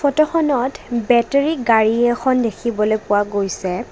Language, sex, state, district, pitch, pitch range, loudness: Assamese, female, Assam, Kamrup Metropolitan, 240 Hz, 215-270 Hz, -18 LUFS